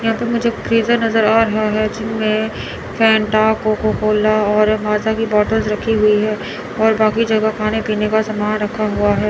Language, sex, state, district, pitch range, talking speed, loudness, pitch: Hindi, male, Chandigarh, Chandigarh, 215-220 Hz, 185 wpm, -16 LUFS, 215 Hz